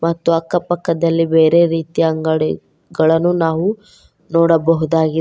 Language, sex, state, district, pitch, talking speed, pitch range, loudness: Kannada, female, Karnataka, Koppal, 165 Hz, 90 wpm, 160-170 Hz, -15 LUFS